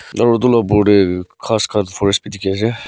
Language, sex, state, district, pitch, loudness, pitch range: Nagamese, male, Nagaland, Kohima, 105 Hz, -15 LUFS, 100-115 Hz